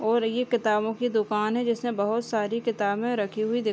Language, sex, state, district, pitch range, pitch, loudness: Hindi, female, Uttar Pradesh, Deoria, 215-235 Hz, 225 Hz, -26 LUFS